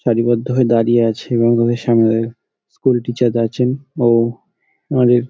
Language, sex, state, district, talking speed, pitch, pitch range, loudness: Bengali, male, West Bengal, Dakshin Dinajpur, 135 wpm, 120 Hz, 115-125 Hz, -16 LUFS